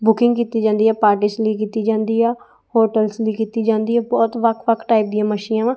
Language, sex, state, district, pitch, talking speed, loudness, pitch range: Punjabi, female, Punjab, Kapurthala, 225 Hz, 210 wpm, -18 LUFS, 215-230 Hz